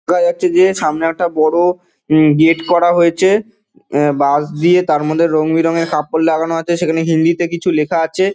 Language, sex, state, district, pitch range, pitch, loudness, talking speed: Bengali, male, West Bengal, Dakshin Dinajpur, 155-175 Hz, 165 Hz, -14 LUFS, 185 wpm